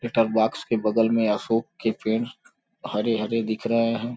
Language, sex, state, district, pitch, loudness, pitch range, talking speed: Hindi, male, Uttar Pradesh, Gorakhpur, 115 Hz, -24 LUFS, 110-115 Hz, 175 wpm